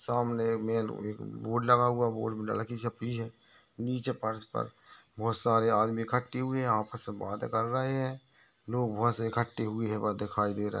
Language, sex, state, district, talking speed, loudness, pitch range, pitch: Hindi, male, Maharashtra, Aurangabad, 170 wpm, -31 LUFS, 110-120 Hz, 115 Hz